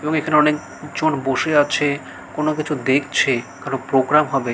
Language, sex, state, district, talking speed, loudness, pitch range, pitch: Bengali, male, West Bengal, Malda, 145 wpm, -19 LUFS, 135-150 Hz, 145 Hz